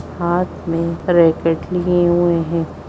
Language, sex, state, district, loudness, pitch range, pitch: Hindi, female, Bihar, Begusarai, -17 LUFS, 165-175 Hz, 170 Hz